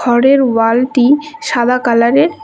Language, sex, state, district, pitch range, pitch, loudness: Bengali, female, West Bengal, Cooch Behar, 240-290 Hz, 250 Hz, -12 LUFS